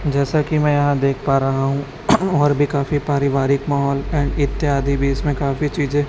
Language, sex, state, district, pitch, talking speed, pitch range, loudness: Hindi, male, Chhattisgarh, Raipur, 140 Hz, 185 wpm, 140-145 Hz, -18 LUFS